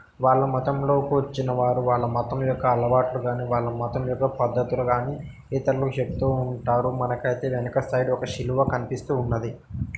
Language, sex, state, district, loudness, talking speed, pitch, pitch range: Telugu, male, Telangana, Nalgonda, -24 LUFS, 150 wpm, 125 Hz, 125-135 Hz